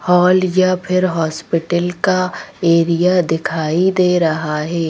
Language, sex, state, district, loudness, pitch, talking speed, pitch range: Hindi, female, Madhya Pradesh, Bhopal, -16 LUFS, 175 Hz, 120 wpm, 165-185 Hz